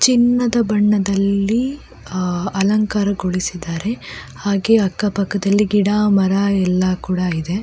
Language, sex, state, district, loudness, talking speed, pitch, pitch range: Kannada, female, Karnataka, Dakshina Kannada, -18 LUFS, 100 wpm, 200 Hz, 185-210 Hz